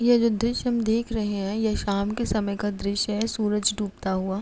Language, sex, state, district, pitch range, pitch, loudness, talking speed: Hindi, female, Uttar Pradesh, Jalaun, 200-225 Hz, 210 Hz, -25 LUFS, 230 wpm